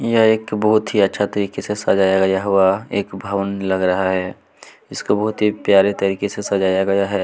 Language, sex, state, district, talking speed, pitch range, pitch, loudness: Hindi, male, Chhattisgarh, Kabirdham, 190 wpm, 95-105 Hz, 100 Hz, -18 LUFS